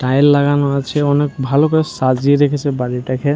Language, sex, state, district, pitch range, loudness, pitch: Bengali, male, West Bengal, Jhargram, 130-145 Hz, -15 LUFS, 140 Hz